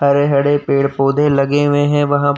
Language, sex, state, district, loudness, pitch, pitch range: Hindi, male, Uttar Pradesh, Jyotiba Phule Nagar, -14 LUFS, 145 Hz, 140-145 Hz